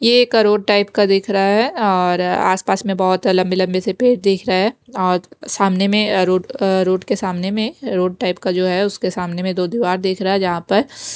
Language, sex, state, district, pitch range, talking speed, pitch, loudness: Hindi, female, Bihar, West Champaran, 185-210 Hz, 225 wpm, 195 Hz, -17 LUFS